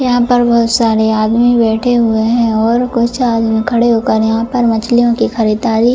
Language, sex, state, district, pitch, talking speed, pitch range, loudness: Hindi, female, Jharkhand, Jamtara, 235 Hz, 200 wpm, 225-240 Hz, -12 LUFS